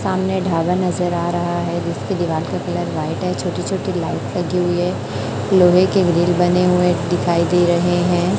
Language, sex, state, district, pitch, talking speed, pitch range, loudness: Hindi, female, Chhattisgarh, Raipur, 175 Hz, 195 wpm, 175-180 Hz, -18 LUFS